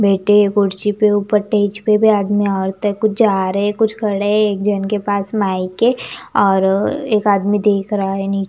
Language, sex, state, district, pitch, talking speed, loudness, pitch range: Hindi, female, Chandigarh, Chandigarh, 205 Hz, 200 wpm, -16 LUFS, 195-210 Hz